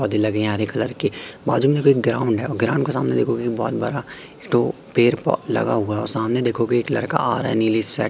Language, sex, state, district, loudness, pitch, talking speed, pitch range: Hindi, male, Madhya Pradesh, Katni, -20 LUFS, 115 Hz, 220 wpm, 105-120 Hz